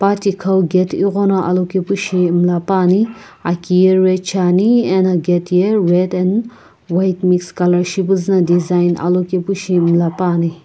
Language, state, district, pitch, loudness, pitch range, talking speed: Sumi, Nagaland, Kohima, 185 Hz, -15 LUFS, 180-190 Hz, 130 wpm